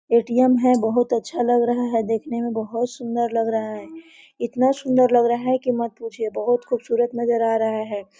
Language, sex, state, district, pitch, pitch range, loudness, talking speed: Hindi, female, Chhattisgarh, Korba, 235 Hz, 230-250 Hz, -21 LUFS, 205 wpm